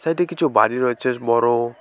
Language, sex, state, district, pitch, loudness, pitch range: Bengali, male, West Bengal, Alipurduar, 125 Hz, -19 LUFS, 120-160 Hz